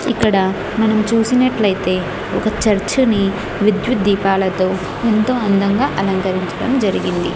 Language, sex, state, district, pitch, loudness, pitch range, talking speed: Telugu, female, Andhra Pradesh, Annamaya, 200 Hz, -16 LUFS, 190-225 Hz, 90 wpm